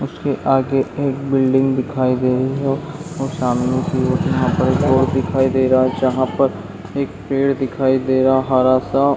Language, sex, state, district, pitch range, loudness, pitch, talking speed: Hindi, male, Chhattisgarh, Raigarh, 130-135 Hz, -17 LUFS, 130 Hz, 195 wpm